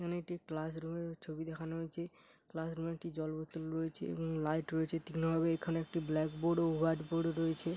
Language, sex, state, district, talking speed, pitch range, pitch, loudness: Bengali, male, West Bengal, Paschim Medinipur, 195 wpm, 160-165 Hz, 165 Hz, -38 LUFS